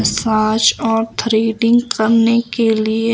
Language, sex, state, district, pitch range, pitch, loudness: Hindi, female, Himachal Pradesh, Shimla, 220-230 Hz, 225 Hz, -15 LUFS